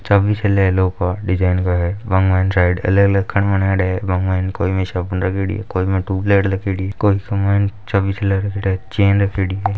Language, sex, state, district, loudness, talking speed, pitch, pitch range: Marwari, male, Rajasthan, Nagaur, -17 LUFS, 50 wpm, 95 Hz, 95-100 Hz